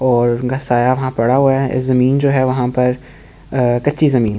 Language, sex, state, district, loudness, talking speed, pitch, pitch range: Hindi, male, Delhi, New Delhi, -15 LUFS, 230 wpm, 130 Hz, 125-135 Hz